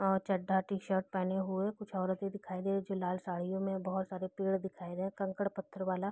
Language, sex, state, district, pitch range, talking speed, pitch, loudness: Hindi, female, Bihar, East Champaran, 185-195 Hz, 235 wpm, 190 Hz, -36 LUFS